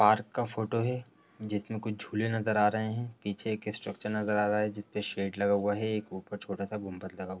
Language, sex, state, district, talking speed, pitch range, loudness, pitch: Hindi, male, Bihar, East Champaran, 260 wpm, 100-110 Hz, -32 LUFS, 105 Hz